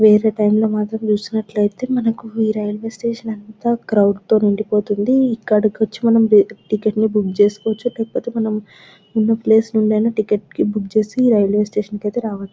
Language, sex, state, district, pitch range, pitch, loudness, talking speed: Telugu, female, Telangana, Nalgonda, 210-225 Hz, 215 Hz, -17 LUFS, 145 wpm